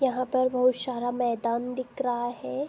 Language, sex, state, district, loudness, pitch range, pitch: Hindi, female, Uttar Pradesh, Deoria, -27 LUFS, 240-255 Hz, 250 Hz